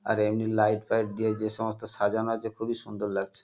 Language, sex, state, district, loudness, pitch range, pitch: Bengali, male, West Bengal, North 24 Parganas, -29 LUFS, 105-110 Hz, 110 Hz